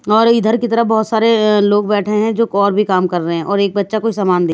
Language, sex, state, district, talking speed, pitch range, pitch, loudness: Hindi, female, Bihar, Katihar, 290 wpm, 200-225 Hz, 210 Hz, -14 LUFS